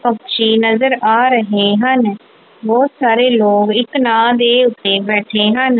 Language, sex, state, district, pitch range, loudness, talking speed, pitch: Punjabi, female, Punjab, Kapurthala, 215-250 Hz, -13 LUFS, 145 wpm, 230 Hz